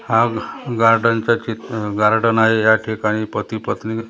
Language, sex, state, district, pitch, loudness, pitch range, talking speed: Marathi, male, Maharashtra, Gondia, 110 Hz, -18 LUFS, 110-115 Hz, 160 wpm